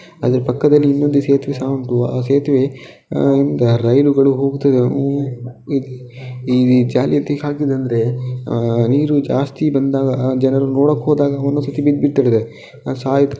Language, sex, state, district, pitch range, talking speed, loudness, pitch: Kannada, male, Karnataka, Dakshina Kannada, 125-140 Hz, 110 wpm, -16 LUFS, 135 Hz